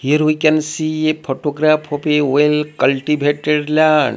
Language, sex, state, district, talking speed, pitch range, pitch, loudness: English, male, Odisha, Malkangiri, 145 wpm, 145-155 Hz, 150 Hz, -16 LUFS